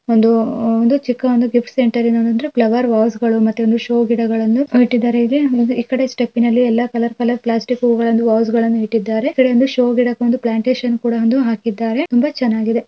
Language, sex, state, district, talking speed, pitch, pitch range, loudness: Kannada, female, Karnataka, Raichur, 175 wpm, 235 Hz, 230-245 Hz, -15 LUFS